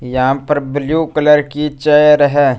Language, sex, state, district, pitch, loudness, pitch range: Hindi, male, Punjab, Fazilka, 150 Hz, -13 LUFS, 140-150 Hz